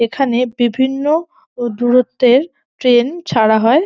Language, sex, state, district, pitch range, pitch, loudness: Bengali, female, West Bengal, North 24 Parganas, 240-290 Hz, 255 Hz, -15 LUFS